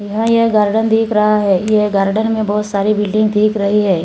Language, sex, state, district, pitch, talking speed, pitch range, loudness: Hindi, female, Maharashtra, Gondia, 210 Hz, 225 wpm, 205-220 Hz, -14 LUFS